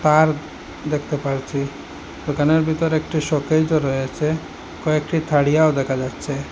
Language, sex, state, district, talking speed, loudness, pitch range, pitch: Bengali, male, Assam, Hailakandi, 110 wpm, -20 LUFS, 140-155 Hz, 150 Hz